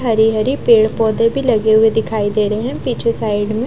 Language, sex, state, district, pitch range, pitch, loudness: Hindi, female, Punjab, Fazilka, 215-230 Hz, 220 Hz, -15 LUFS